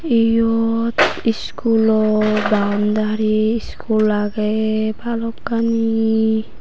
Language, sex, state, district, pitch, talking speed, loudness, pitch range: Chakma, female, Tripura, Unakoti, 220 Hz, 55 wpm, -18 LUFS, 215-230 Hz